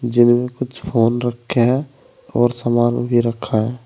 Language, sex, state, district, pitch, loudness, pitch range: Hindi, male, Uttar Pradesh, Saharanpur, 120 Hz, -18 LUFS, 120-125 Hz